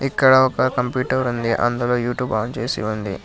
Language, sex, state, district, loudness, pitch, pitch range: Telugu, male, Telangana, Hyderabad, -19 LUFS, 125 Hz, 115-130 Hz